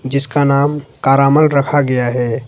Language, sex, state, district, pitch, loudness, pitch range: Hindi, male, Jharkhand, Ranchi, 140 Hz, -13 LUFS, 130-145 Hz